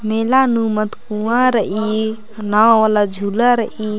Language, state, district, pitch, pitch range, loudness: Kurukh, Chhattisgarh, Jashpur, 220 Hz, 215-230 Hz, -16 LUFS